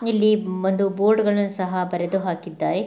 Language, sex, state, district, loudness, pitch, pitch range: Kannada, female, Karnataka, Mysore, -22 LUFS, 195 Hz, 185-210 Hz